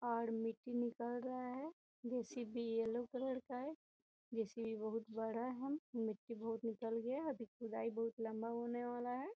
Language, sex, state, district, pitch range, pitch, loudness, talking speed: Hindi, female, Bihar, Gopalganj, 225-250 Hz, 235 Hz, -44 LUFS, 160 wpm